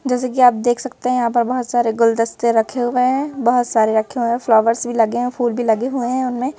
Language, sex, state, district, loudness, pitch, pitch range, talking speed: Hindi, female, Madhya Pradesh, Bhopal, -17 LUFS, 240 Hz, 235-250 Hz, 265 wpm